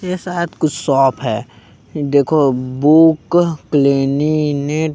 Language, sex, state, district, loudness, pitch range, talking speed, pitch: Chhattisgarhi, male, Chhattisgarh, Kabirdham, -15 LUFS, 135-160 Hz, 95 wpm, 145 Hz